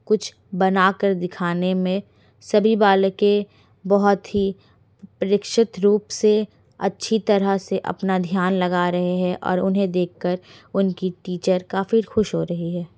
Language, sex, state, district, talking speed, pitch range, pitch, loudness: Hindi, female, Bihar, Kishanganj, 135 wpm, 180-205 Hz, 190 Hz, -21 LUFS